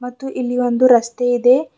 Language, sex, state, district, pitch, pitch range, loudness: Kannada, female, Karnataka, Bidar, 250 Hz, 245-255 Hz, -16 LUFS